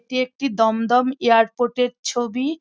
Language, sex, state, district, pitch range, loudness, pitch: Bengali, female, West Bengal, Kolkata, 235-255 Hz, -20 LUFS, 245 Hz